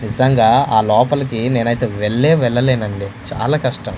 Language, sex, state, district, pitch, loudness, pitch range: Telugu, male, Andhra Pradesh, Manyam, 120 Hz, -15 LUFS, 110-130 Hz